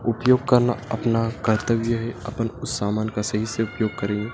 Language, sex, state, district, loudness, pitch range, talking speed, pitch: Hindi, male, Madhya Pradesh, Dhar, -23 LUFS, 110-120 Hz, 180 wpm, 115 Hz